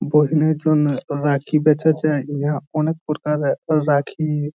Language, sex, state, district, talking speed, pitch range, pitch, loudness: Bengali, male, West Bengal, Jhargram, 105 wpm, 145-155 Hz, 150 Hz, -19 LUFS